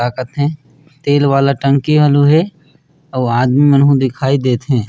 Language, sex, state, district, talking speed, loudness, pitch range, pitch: Chhattisgarhi, male, Chhattisgarh, Raigarh, 145 wpm, -13 LUFS, 130-150 Hz, 140 Hz